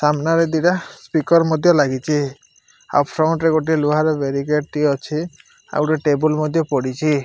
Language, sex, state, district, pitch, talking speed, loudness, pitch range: Odia, male, Odisha, Malkangiri, 155 Hz, 125 wpm, -18 LUFS, 145-160 Hz